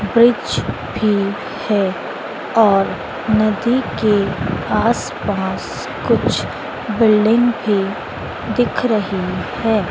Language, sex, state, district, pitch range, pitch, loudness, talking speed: Hindi, female, Madhya Pradesh, Dhar, 200-225 Hz, 215 Hz, -18 LUFS, 80 wpm